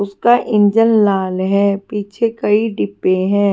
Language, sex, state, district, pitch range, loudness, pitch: Hindi, female, Delhi, New Delhi, 195-220 Hz, -15 LUFS, 200 Hz